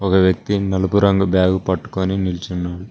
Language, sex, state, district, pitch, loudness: Telugu, male, Telangana, Mahabubabad, 95 Hz, -18 LUFS